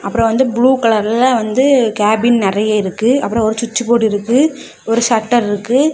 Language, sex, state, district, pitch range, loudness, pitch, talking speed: Tamil, female, Tamil Nadu, Kanyakumari, 220-250 Hz, -14 LUFS, 230 Hz, 160 wpm